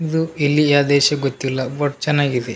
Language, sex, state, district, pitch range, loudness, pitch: Kannada, male, Karnataka, Raichur, 135-150 Hz, -18 LUFS, 145 Hz